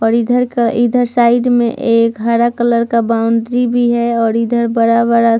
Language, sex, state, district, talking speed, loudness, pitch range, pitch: Hindi, female, Uttar Pradesh, Muzaffarnagar, 200 wpm, -13 LUFS, 230-240 Hz, 235 Hz